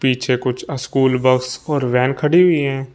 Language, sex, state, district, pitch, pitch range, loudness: Hindi, male, Uttar Pradesh, Shamli, 130 Hz, 125-140 Hz, -17 LUFS